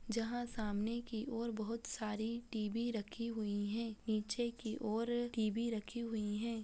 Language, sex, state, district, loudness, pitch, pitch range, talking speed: Hindi, female, Bihar, Saharsa, -40 LUFS, 225 Hz, 215-235 Hz, 155 wpm